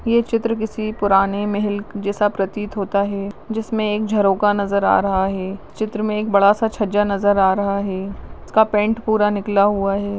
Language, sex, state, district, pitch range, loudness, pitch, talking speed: Hindi, female, Rajasthan, Nagaur, 200-215 Hz, -19 LUFS, 205 Hz, 190 wpm